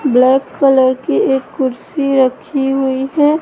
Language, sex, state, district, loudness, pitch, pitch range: Hindi, female, Madhya Pradesh, Katni, -14 LUFS, 270 Hz, 260-275 Hz